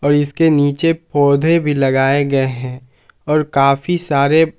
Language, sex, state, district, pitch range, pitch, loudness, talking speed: Hindi, male, Jharkhand, Palamu, 140-160 Hz, 145 Hz, -15 LUFS, 145 wpm